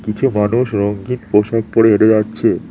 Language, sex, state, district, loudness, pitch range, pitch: Bengali, male, West Bengal, Cooch Behar, -15 LUFS, 105-115 Hz, 110 Hz